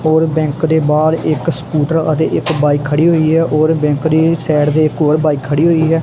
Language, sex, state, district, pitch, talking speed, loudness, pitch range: Punjabi, male, Punjab, Kapurthala, 155 Hz, 230 wpm, -13 LUFS, 150-160 Hz